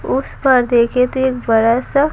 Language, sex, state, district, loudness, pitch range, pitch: Hindi, female, Bihar, Patna, -15 LUFS, 235-260 Hz, 250 Hz